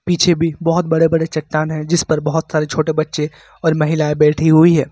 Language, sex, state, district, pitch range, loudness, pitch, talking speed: Hindi, male, Uttar Pradesh, Lucknow, 155-165 Hz, -16 LUFS, 160 Hz, 205 wpm